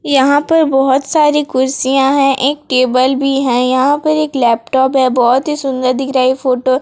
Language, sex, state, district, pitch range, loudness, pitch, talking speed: Hindi, female, Odisha, Sambalpur, 255-285 Hz, -12 LUFS, 270 Hz, 200 wpm